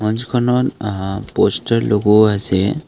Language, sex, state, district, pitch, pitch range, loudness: Assamese, male, Assam, Kamrup Metropolitan, 110 Hz, 100-125 Hz, -16 LUFS